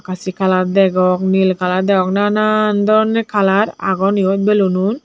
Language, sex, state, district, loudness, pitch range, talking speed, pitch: Chakma, female, Tripura, Dhalai, -15 LUFS, 185-205 Hz, 155 wpm, 195 Hz